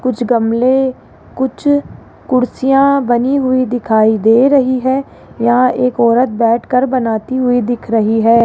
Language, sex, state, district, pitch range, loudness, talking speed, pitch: Hindi, female, Rajasthan, Jaipur, 230-260 Hz, -13 LUFS, 135 wpm, 250 Hz